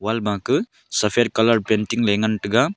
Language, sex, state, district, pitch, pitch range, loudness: Wancho, male, Arunachal Pradesh, Longding, 110 Hz, 105-115 Hz, -20 LUFS